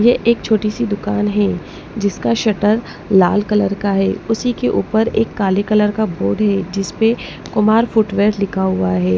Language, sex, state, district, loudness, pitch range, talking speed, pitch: Hindi, female, Punjab, Pathankot, -16 LUFS, 195-220 Hz, 185 wpm, 205 Hz